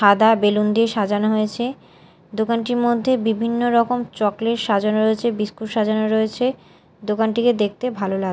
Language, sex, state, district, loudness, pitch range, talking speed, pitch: Bengali, female, Odisha, Malkangiri, -20 LUFS, 210-235 Hz, 135 wpm, 220 Hz